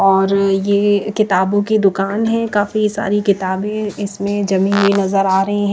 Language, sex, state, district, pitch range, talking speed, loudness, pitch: Hindi, female, Himachal Pradesh, Shimla, 195-205 Hz, 165 wpm, -16 LUFS, 200 Hz